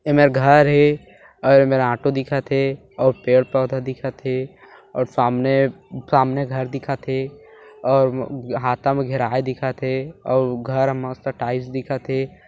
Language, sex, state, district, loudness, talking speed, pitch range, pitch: Hindi, male, Chhattisgarh, Bilaspur, -20 LUFS, 145 wpm, 130-135 Hz, 130 Hz